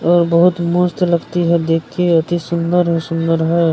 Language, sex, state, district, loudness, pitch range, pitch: Hindi, male, Bihar, Kishanganj, -15 LUFS, 165-175 Hz, 170 Hz